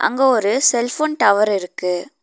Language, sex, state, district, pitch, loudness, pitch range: Tamil, female, Tamil Nadu, Nilgiris, 235 Hz, -17 LUFS, 200-270 Hz